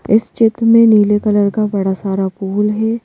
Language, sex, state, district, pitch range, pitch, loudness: Hindi, female, Madhya Pradesh, Bhopal, 200-225 Hz, 210 Hz, -14 LUFS